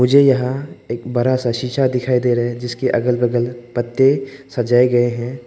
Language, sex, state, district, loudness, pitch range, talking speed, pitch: Hindi, male, Arunachal Pradesh, Papum Pare, -18 LUFS, 120-130 Hz, 185 wpm, 125 Hz